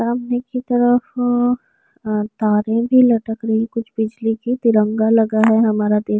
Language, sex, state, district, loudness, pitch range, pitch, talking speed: Hindi, female, Uttar Pradesh, Jyotiba Phule Nagar, -17 LUFS, 220-245 Hz, 225 Hz, 165 wpm